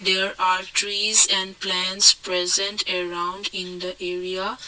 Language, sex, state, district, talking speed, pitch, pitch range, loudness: English, male, Assam, Kamrup Metropolitan, 130 wpm, 185 Hz, 180-195 Hz, -20 LUFS